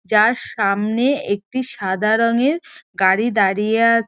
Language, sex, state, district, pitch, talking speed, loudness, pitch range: Bengali, female, West Bengal, North 24 Parganas, 220 Hz, 120 wpm, -18 LUFS, 200-240 Hz